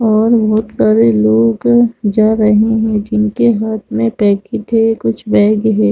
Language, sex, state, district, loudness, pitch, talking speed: Hindi, female, Chhattisgarh, Raigarh, -12 LUFS, 215 Hz, 150 wpm